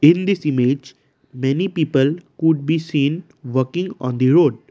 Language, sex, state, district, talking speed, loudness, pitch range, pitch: English, male, Assam, Kamrup Metropolitan, 155 wpm, -19 LUFS, 130-165 Hz, 145 Hz